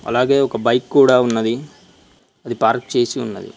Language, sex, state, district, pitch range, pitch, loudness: Telugu, male, Telangana, Mahabubabad, 115-130 Hz, 120 Hz, -17 LUFS